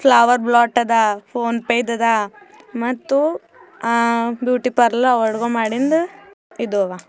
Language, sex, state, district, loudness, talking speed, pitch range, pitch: Kannada, female, Karnataka, Bidar, -18 LUFS, 120 wpm, 230-250 Hz, 235 Hz